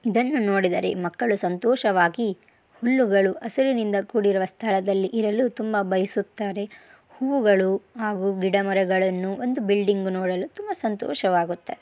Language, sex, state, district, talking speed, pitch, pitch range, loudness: Kannada, female, Karnataka, Bellary, 100 wpm, 205 Hz, 190-230 Hz, -23 LUFS